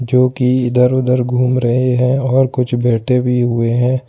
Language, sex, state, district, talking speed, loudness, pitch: Hindi, male, Jharkhand, Ranchi, 190 wpm, -14 LUFS, 125 Hz